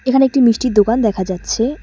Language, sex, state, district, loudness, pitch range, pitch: Bengali, female, West Bengal, Cooch Behar, -15 LUFS, 215-260 Hz, 235 Hz